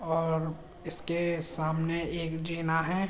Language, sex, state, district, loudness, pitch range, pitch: Hindi, male, Uttar Pradesh, Jyotiba Phule Nagar, -31 LUFS, 160-170 Hz, 165 Hz